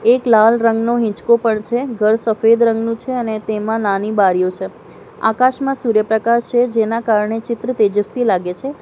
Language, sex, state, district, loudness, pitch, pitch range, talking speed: Gujarati, female, Gujarat, Valsad, -16 LUFS, 225 Hz, 215-235 Hz, 165 wpm